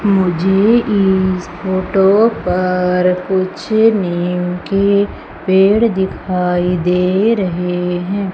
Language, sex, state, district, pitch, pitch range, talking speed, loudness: Hindi, female, Madhya Pradesh, Umaria, 185 Hz, 180-200 Hz, 85 wpm, -14 LUFS